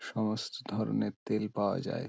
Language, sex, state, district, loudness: Bengali, male, West Bengal, Dakshin Dinajpur, -34 LUFS